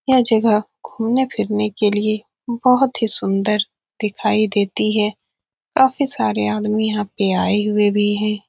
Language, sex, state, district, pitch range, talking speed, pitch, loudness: Hindi, female, Bihar, Saran, 205-225 Hz, 150 wpm, 210 Hz, -18 LUFS